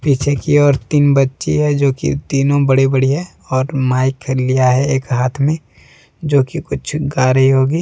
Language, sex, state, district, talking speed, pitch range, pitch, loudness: Hindi, male, Jharkhand, Deoghar, 190 wpm, 130-145 Hz, 135 Hz, -15 LUFS